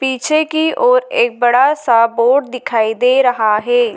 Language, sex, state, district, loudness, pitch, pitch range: Hindi, female, Madhya Pradesh, Dhar, -13 LUFS, 265 Hz, 240-320 Hz